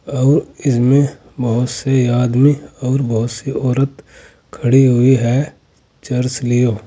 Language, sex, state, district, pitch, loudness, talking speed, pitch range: Hindi, male, Uttar Pradesh, Saharanpur, 130 Hz, -15 LUFS, 120 wpm, 120-135 Hz